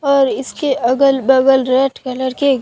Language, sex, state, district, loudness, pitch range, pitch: Hindi, female, Bihar, Katihar, -14 LUFS, 260-275 Hz, 265 Hz